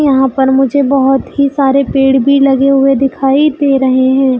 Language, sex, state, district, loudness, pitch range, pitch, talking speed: Hindi, female, Chhattisgarh, Bilaspur, -10 LUFS, 265-275 Hz, 270 Hz, 190 wpm